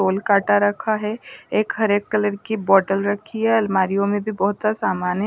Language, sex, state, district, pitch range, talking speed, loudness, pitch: Hindi, female, Bihar, West Champaran, 195-215 Hz, 205 wpm, -20 LUFS, 205 Hz